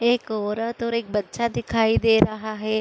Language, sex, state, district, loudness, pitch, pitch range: Hindi, female, Uttar Pradesh, Budaun, -23 LUFS, 220 Hz, 215-230 Hz